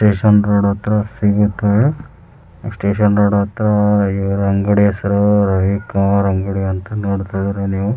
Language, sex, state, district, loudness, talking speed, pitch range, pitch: Kannada, male, Karnataka, Raichur, -15 LUFS, 115 wpm, 100-105 Hz, 100 Hz